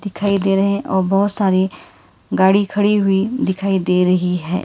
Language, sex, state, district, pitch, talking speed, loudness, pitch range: Hindi, female, Karnataka, Bangalore, 195 Hz, 180 wpm, -17 LUFS, 185-200 Hz